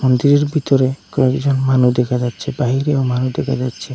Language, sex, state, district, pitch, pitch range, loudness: Bengali, male, Assam, Hailakandi, 130 Hz, 125-140 Hz, -16 LUFS